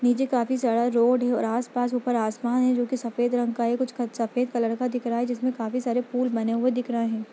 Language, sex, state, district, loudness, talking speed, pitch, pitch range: Hindi, female, Bihar, Gaya, -25 LUFS, 260 wpm, 245 Hz, 235-250 Hz